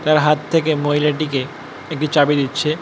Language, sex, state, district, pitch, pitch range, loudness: Bengali, male, West Bengal, North 24 Parganas, 150 Hz, 145-155 Hz, -17 LUFS